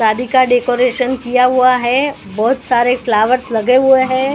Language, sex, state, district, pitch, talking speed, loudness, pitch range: Hindi, female, Maharashtra, Mumbai Suburban, 250 Hz, 165 wpm, -13 LUFS, 245-260 Hz